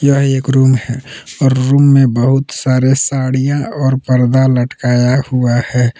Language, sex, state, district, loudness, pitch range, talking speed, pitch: Hindi, male, Jharkhand, Palamu, -12 LUFS, 125-135 Hz, 150 wpm, 130 Hz